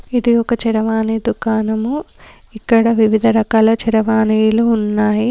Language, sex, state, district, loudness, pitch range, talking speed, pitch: Telugu, female, Telangana, Komaram Bheem, -15 LUFS, 220-230 Hz, 100 wpm, 225 Hz